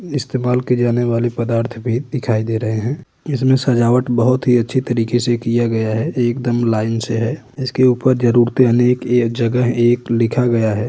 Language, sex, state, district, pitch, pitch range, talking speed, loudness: Hindi, male, Uttar Pradesh, Budaun, 120 Hz, 115-125 Hz, 185 wpm, -16 LUFS